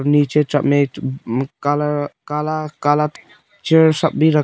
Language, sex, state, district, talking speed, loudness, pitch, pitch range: Hindi, male, Nagaland, Kohima, 110 wpm, -18 LUFS, 150 Hz, 145-155 Hz